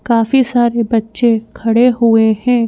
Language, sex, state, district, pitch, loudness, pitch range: Hindi, female, Madhya Pradesh, Bhopal, 230 Hz, -13 LUFS, 225-240 Hz